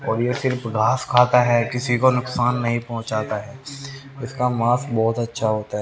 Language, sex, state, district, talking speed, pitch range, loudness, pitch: Hindi, male, Haryana, Rohtak, 185 wpm, 115-125 Hz, -21 LUFS, 120 Hz